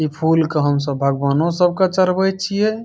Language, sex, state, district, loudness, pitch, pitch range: Maithili, male, Bihar, Saharsa, -17 LUFS, 165 Hz, 145-190 Hz